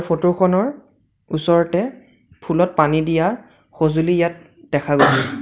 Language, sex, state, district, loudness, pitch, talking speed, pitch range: Assamese, male, Assam, Sonitpur, -18 LUFS, 170 Hz, 110 wpm, 160-185 Hz